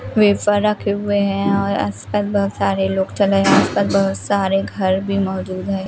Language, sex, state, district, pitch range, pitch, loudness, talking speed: Hindi, female, Bihar, West Champaran, 190-200 Hz, 195 Hz, -18 LUFS, 185 wpm